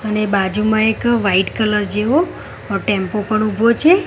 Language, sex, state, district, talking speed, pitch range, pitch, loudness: Gujarati, female, Gujarat, Gandhinagar, 160 wpm, 205-225 Hz, 215 Hz, -16 LUFS